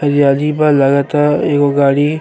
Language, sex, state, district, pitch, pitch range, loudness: Bhojpuri, male, Uttar Pradesh, Deoria, 145 Hz, 140-150 Hz, -12 LUFS